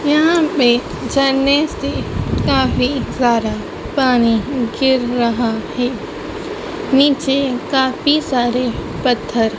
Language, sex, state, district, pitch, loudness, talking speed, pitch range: Hindi, female, Madhya Pradesh, Dhar, 260 Hz, -16 LUFS, 85 wpm, 240-290 Hz